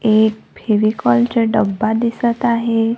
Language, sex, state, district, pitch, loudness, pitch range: Marathi, female, Maharashtra, Gondia, 220 Hz, -16 LUFS, 215-230 Hz